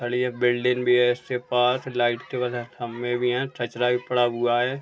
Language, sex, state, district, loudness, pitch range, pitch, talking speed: Hindi, male, Uttar Pradesh, Gorakhpur, -24 LUFS, 120-125 Hz, 125 Hz, 200 wpm